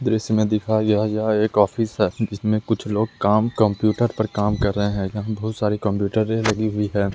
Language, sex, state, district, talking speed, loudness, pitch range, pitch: Hindi, male, Bihar, Muzaffarpur, 220 wpm, -21 LUFS, 105-110 Hz, 105 Hz